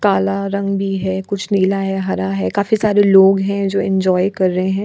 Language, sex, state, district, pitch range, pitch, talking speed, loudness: Hindi, female, Bihar, Kishanganj, 190-200 Hz, 195 Hz, 220 wpm, -16 LUFS